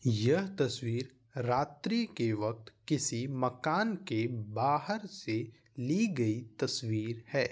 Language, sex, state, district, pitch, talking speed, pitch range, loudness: Hindi, male, Bihar, Vaishali, 125 Hz, 110 wpm, 115-150 Hz, -33 LUFS